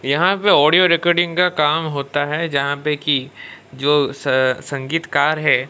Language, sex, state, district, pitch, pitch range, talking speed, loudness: Hindi, male, Odisha, Malkangiri, 145 Hz, 140-165 Hz, 160 wpm, -17 LUFS